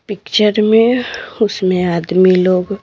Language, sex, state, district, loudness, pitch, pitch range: Hindi, female, Bihar, Patna, -13 LUFS, 200 Hz, 185-215 Hz